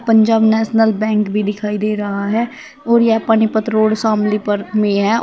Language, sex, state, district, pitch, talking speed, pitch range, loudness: Hindi, female, Uttar Pradesh, Shamli, 220 Hz, 195 wpm, 210-225 Hz, -15 LUFS